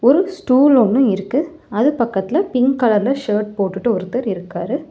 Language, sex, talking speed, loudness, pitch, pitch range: Tamil, female, 160 wpm, -17 LUFS, 250 Hz, 210-275 Hz